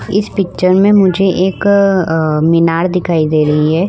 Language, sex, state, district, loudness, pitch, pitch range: Hindi, female, Uttar Pradesh, Varanasi, -12 LUFS, 180 Hz, 160-195 Hz